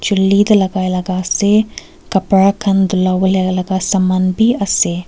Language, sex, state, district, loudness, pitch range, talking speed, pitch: Nagamese, female, Nagaland, Kohima, -14 LUFS, 185-200 Hz, 155 wpm, 190 Hz